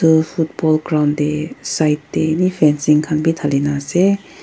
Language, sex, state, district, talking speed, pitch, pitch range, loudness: Nagamese, female, Nagaland, Dimapur, 160 wpm, 155 Hz, 150-160 Hz, -17 LUFS